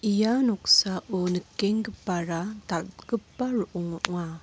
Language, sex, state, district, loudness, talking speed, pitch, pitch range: Garo, female, Meghalaya, North Garo Hills, -26 LUFS, 80 wpm, 190 Hz, 175-220 Hz